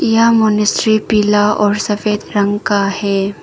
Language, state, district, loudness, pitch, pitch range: Hindi, Arunachal Pradesh, Papum Pare, -14 LUFS, 210 Hz, 205-215 Hz